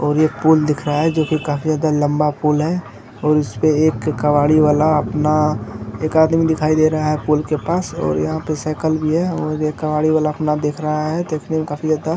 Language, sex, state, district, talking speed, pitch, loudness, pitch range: Hindi, male, Bihar, Kishanganj, 235 wpm, 155 Hz, -17 LUFS, 150-155 Hz